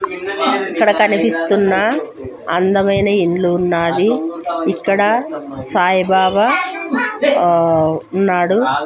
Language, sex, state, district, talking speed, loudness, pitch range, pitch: Telugu, female, Andhra Pradesh, Sri Satya Sai, 70 wpm, -15 LUFS, 170-205 Hz, 190 Hz